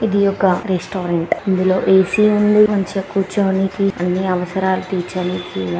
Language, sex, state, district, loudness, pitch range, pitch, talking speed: Telugu, female, Andhra Pradesh, Srikakulam, -17 LUFS, 180-200 Hz, 190 Hz, 115 wpm